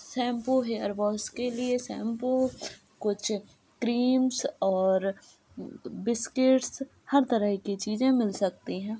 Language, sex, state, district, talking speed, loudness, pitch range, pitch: Hindi, female, Uttar Pradesh, Jalaun, 105 wpm, -28 LUFS, 210-255 Hz, 235 Hz